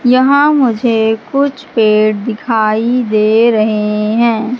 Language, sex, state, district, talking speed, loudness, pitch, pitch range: Hindi, female, Madhya Pradesh, Katni, 105 wpm, -12 LUFS, 225 Hz, 215-250 Hz